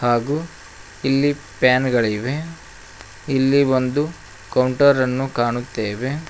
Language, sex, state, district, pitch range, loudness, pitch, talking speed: Kannada, male, Karnataka, Koppal, 120-140 Hz, -20 LUFS, 130 Hz, 85 wpm